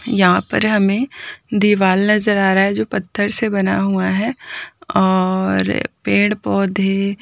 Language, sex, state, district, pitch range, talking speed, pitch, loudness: Hindi, female, Uttarakhand, Uttarkashi, 190-210 Hz, 140 wpm, 195 Hz, -16 LUFS